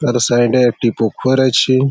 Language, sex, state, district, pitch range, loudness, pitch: Bengali, male, West Bengal, Malda, 120-130 Hz, -14 LUFS, 125 Hz